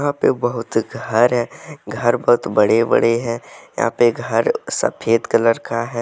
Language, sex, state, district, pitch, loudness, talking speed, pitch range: Hindi, male, Jharkhand, Deoghar, 115 Hz, -18 LUFS, 160 wpm, 115-120 Hz